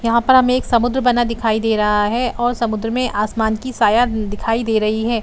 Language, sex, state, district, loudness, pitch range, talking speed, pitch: Hindi, female, Bihar, Saran, -17 LUFS, 220-245 Hz, 230 wpm, 230 Hz